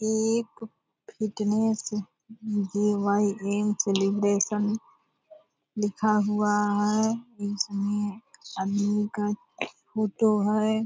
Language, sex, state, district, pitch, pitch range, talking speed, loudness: Hindi, female, Bihar, Purnia, 210 Hz, 205-220 Hz, 70 wpm, -27 LUFS